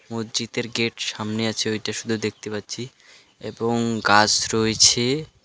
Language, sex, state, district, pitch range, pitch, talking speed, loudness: Bengali, male, West Bengal, Alipurduar, 105-115 Hz, 110 Hz, 130 wpm, -21 LUFS